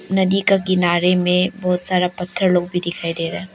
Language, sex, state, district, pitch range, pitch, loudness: Hindi, female, Arunachal Pradesh, Lower Dibang Valley, 175-185 Hz, 180 Hz, -18 LUFS